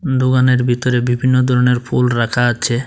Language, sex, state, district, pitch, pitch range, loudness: Bengali, male, Tripura, Dhalai, 125 Hz, 120-130 Hz, -15 LUFS